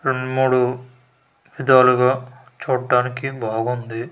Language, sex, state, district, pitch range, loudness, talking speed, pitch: Telugu, male, Andhra Pradesh, Manyam, 125-130 Hz, -19 LUFS, 75 wpm, 125 Hz